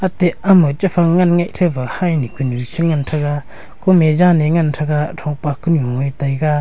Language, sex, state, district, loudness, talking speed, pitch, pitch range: Wancho, male, Arunachal Pradesh, Longding, -16 LUFS, 170 wpm, 155 Hz, 145-175 Hz